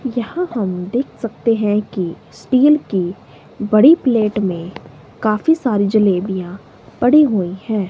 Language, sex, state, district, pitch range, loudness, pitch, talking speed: Hindi, female, Himachal Pradesh, Shimla, 190-250 Hz, -16 LUFS, 215 Hz, 130 wpm